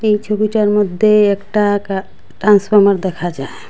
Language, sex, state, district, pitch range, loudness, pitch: Bengali, female, Assam, Hailakandi, 195-210 Hz, -14 LUFS, 205 Hz